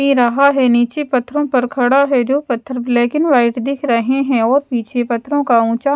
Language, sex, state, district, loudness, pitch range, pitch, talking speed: Hindi, female, Odisha, Sambalpur, -15 LUFS, 240-275 Hz, 255 Hz, 200 wpm